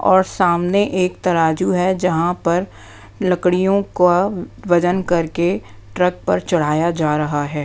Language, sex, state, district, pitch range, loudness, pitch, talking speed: Hindi, female, Bihar, West Champaran, 160-185 Hz, -17 LUFS, 175 Hz, 135 wpm